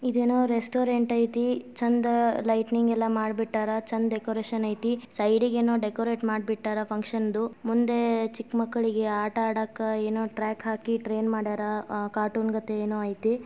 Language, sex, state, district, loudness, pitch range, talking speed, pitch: Kannada, female, Karnataka, Dharwad, -27 LUFS, 215-235 Hz, 145 wpm, 225 Hz